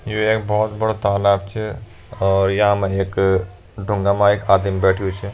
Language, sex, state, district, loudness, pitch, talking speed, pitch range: Hindi, male, Uttarakhand, Uttarkashi, -18 LUFS, 100 Hz, 170 wpm, 95-110 Hz